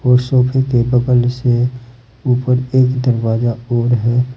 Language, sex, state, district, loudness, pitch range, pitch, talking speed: Hindi, male, Uttar Pradesh, Saharanpur, -15 LUFS, 120-125 Hz, 125 Hz, 135 wpm